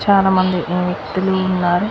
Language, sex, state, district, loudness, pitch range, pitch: Telugu, female, Andhra Pradesh, Srikakulam, -17 LUFS, 180-190 Hz, 185 Hz